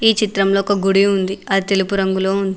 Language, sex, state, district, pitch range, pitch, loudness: Telugu, female, Telangana, Mahabubabad, 195-200 Hz, 195 Hz, -17 LUFS